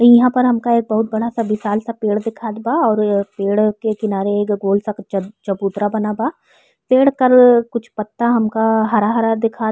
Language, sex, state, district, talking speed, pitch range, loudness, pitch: Bhojpuri, female, Uttar Pradesh, Ghazipur, 200 wpm, 210-235 Hz, -16 LUFS, 220 Hz